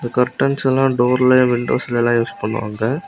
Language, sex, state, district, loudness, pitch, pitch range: Tamil, male, Tamil Nadu, Kanyakumari, -17 LUFS, 120 Hz, 120-130 Hz